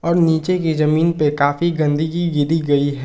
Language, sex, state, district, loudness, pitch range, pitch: Hindi, male, Jharkhand, Ranchi, -17 LUFS, 145-170 Hz, 160 Hz